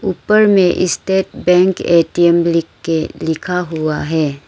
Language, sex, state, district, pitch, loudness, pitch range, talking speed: Hindi, female, Arunachal Pradesh, Lower Dibang Valley, 170 Hz, -14 LUFS, 160-180 Hz, 135 wpm